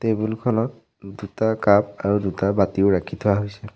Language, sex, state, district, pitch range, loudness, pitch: Assamese, male, Assam, Sonitpur, 100-110 Hz, -21 LUFS, 100 Hz